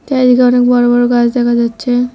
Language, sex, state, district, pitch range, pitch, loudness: Bengali, female, West Bengal, Cooch Behar, 240-250 Hz, 245 Hz, -11 LUFS